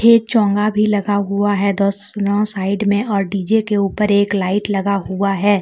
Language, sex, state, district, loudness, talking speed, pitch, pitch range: Hindi, female, Jharkhand, Deoghar, -16 LUFS, 215 wpm, 200 Hz, 200-210 Hz